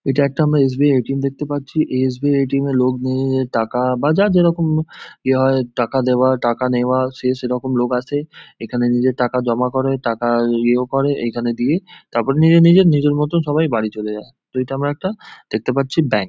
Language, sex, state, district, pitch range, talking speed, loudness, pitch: Bengali, male, West Bengal, Jhargram, 125-145 Hz, 230 wpm, -17 LUFS, 130 Hz